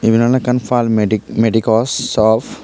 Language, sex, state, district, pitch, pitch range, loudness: Chakma, male, Tripura, Unakoti, 115 Hz, 110-125 Hz, -15 LUFS